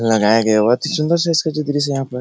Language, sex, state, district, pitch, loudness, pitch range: Hindi, male, Bihar, Araria, 140 Hz, -16 LUFS, 115-155 Hz